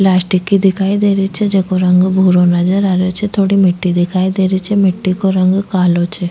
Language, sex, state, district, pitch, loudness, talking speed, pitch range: Rajasthani, female, Rajasthan, Nagaur, 190 Hz, -13 LUFS, 230 wpm, 185-195 Hz